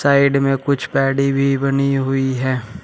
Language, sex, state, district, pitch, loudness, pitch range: Hindi, male, Uttar Pradesh, Shamli, 135 Hz, -17 LUFS, 135-140 Hz